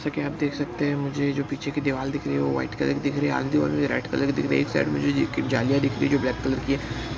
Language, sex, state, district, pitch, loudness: Hindi, male, Bihar, Bhagalpur, 140 Hz, -25 LUFS